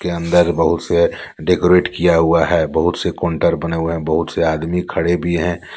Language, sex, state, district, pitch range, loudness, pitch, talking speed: Hindi, male, Jharkhand, Deoghar, 85-90 Hz, -16 LUFS, 85 Hz, 210 wpm